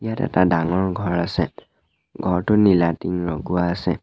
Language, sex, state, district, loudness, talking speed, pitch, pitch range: Assamese, male, Assam, Sonitpur, -20 LUFS, 150 wpm, 90 Hz, 85-95 Hz